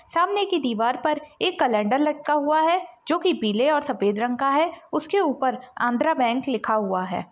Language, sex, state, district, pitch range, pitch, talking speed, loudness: Hindi, female, Maharashtra, Dhule, 240-330 Hz, 295 Hz, 195 wpm, -23 LUFS